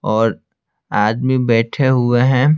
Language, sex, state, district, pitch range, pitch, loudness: Hindi, male, Bihar, Patna, 115-130 Hz, 120 Hz, -16 LUFS